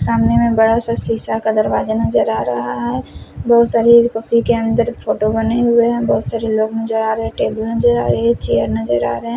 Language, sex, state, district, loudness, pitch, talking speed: Hindi, male, Punjab, Fazilka, -16 LUFS, 220 Hz, 230 wpm